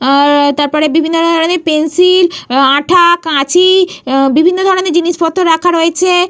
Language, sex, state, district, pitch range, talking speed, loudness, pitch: Bengali, female, Jharkhand, Jamtara, 295-360 Hz, 115 wpm, -10 LUFS, 330 Hz